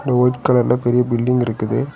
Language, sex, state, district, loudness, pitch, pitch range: Tamil, male, Tamil Nadu, Kanyakumari, -17 LUFS, 125 Hz, 120-125 Hz